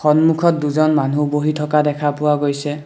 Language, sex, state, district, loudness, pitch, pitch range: Assamese, male, Assam, Kamrup Metropolitan, -17 LUFS, 150 Hz, 145-155 Hz